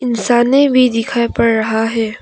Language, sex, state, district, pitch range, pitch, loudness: Hindi, female, Arunachal Pradesh, Papum Pare, 225-250 Hz, 235 Hz, -13 LUFS